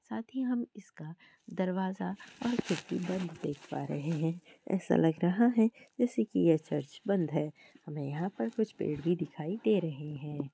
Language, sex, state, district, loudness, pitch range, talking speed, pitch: Hindi, female, Bihar, Kishanganj, -33 LUFS, 160-225 Hz, 180 wpm, 185 Hz